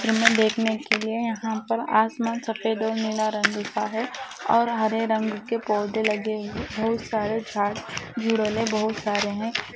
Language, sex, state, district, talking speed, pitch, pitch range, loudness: Hindi, female, Rajasthan, Nagaur, 185 wpm, 220 Hz, 215-225 Hz, -25 LUFS